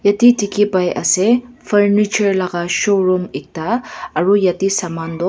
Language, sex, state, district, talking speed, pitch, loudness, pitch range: Nagamese, female, Nagaland, Dimapur, 135 wpm, 195 Hz, -16 LUFS, 180-210 Hz